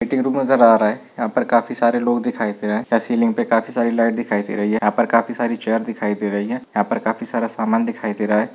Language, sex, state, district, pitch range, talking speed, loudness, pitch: Hindi, male, Uttar Pradesh, Gorakhpur, 105-120 Hz, 280 wpm, -19 LUFS, 115 Hz